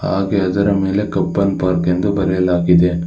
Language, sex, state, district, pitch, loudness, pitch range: Kannada, male, Karnataka, Bangalore, 95 Hz, -16 LUFS, 90-100 Hz